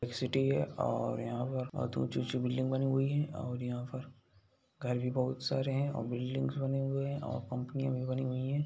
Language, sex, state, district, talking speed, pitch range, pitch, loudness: Hindi, male, Bihar, Gaya, 235 wpm, 125-135 Hz, 130 Hz, -35 LUFS